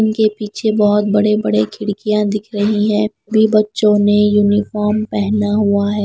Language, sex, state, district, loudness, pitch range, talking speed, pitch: Hindi, female, Punjab, Pathankot, -15 LUFS, 205-215 Hz, 160 wpm, 210 Hz